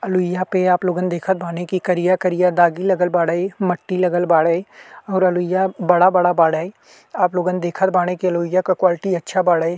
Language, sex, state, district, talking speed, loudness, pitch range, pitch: Bhojpuri, male, Uttar Pradesh, Ghazipur, 170 wpm, -18 LUFS, 175-185 Hz, 180 Hz